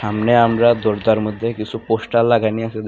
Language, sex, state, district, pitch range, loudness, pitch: Bengali, male, Tripura, Unakoti, 110-115 Hz, -17 LUFS, 115 Hz